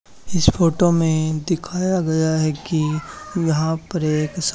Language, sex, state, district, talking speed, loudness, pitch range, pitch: Hindi, male, Haryana, Charkhi Dadri, 145 wpm, -20 LUFS, 155-175 Hz, 160 Hz